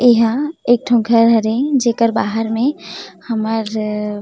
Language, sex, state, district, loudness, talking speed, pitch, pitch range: Chhattisgarhi, female, Chhattisgarh, Rajnandgaon, -16 LUFS, 130 wpm, 230 Hz, 220-245 Hz